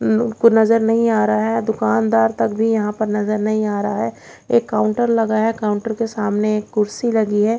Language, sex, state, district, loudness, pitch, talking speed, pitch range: Hindi, female, Bihar, Katihar, -18 LUFS, 215 Hz, 215 wpm, 210-225 Hz